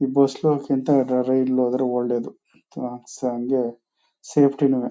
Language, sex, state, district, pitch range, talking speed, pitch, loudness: Kannada, male, Karnataka, Chamarajanagar, 125-140 Hz, 100 wpm, 130 Hz, -22 LUFS